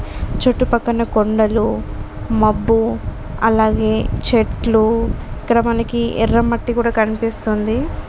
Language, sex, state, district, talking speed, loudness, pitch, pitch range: Telugu, female, Telangana, Karimnagar, 90 wpm, -17 LUFS, 225 Hz, 220-235 Hz